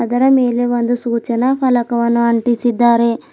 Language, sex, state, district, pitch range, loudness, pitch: Kannada, female, Karnataka, Bidar, 235-245 Hz, -15 LUFS, 240 Hz